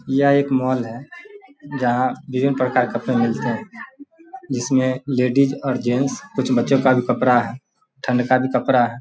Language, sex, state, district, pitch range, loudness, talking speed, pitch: Hindi, male, Bihar, Samastipur, 125-140 Hz, -19 LUFS, 175 wpm, 130 Hz